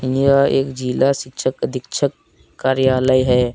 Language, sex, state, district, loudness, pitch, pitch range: Hindi, male, Jharkhand, Deoghar, -18 LUFS, 130 Hz, 130-135 Hz